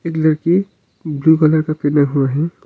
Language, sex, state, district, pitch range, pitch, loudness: Hindi, male, Arunachal Pradesh, Longding, 145-160 Hz, 155 Hz, -15 LUFS